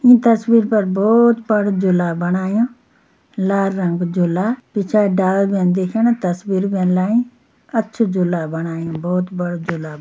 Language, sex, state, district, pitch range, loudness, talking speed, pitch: Garhwali, female, Uttarakhand, Uttarkashi, 180-225 Hz, -17 LUFS, 145 wpm, 195 Hz